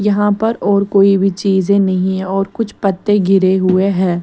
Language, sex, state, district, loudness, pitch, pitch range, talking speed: Hindi, female, Chandigarh, Chandigarh, -14 LUFS, 195 Hz, 190-205 Hz, 200 wpm